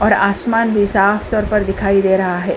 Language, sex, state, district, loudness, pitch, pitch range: Hindi, female, Uttar Pradesh, Hamirpur, -15 LUFS, 200 Hz, 195-210 Hz